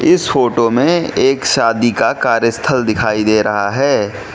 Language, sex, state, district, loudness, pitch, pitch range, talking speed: Hindi, male, Manipur, Imphal West, -14 LUFS, 120 Hz, 110-135 Hz, 165 wpm